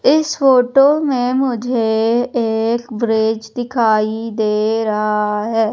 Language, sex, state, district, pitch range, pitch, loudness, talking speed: Hindi, female, Madhya Pradesh, Umaria, 220-250 Hz, 225 Hz, -16 LUFS, 105 wpm